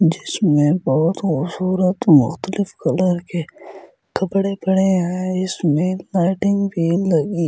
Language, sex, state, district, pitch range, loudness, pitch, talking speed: Hindi, male, Delhi, New Delhi, 165-190 Hz, -18 LUFS, 185 Hz, 120 wpm